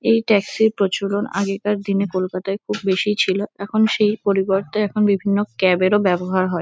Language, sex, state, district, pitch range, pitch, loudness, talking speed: Bengali, female, West Bengal, Kolkata, 190-210 Hz, 200 Hz, -19 LUFS, 170 wpm